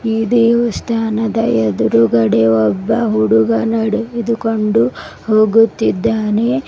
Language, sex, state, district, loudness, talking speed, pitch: Kannada, female, Karnataka, Bidar, -14 LUFS, 55 wpm, 220 Hz